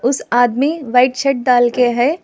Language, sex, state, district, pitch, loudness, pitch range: Hindi, female, Telangana, Hyderabad, 250 Hz, -14 LUFS, 245-275 Hz